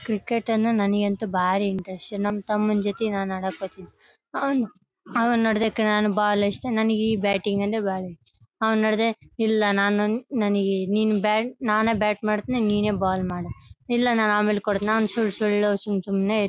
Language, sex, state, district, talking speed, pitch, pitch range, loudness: Kannada, female, Karnataka, Bellary, 165 wpm, 210 Hz, 200-220 Hz, -23 LUFS